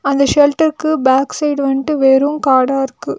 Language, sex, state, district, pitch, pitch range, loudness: Tamil, female, Tamil Nadu, Nilgiris, 280 Hz, 270-300 Hz, -14 LUFS